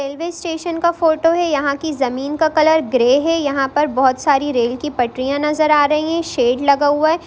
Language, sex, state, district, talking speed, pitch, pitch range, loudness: Hindi, female, Bihar, Sitamarhi, 220 wpm, 295 Hz, 270-320 Hz, -16 LUFS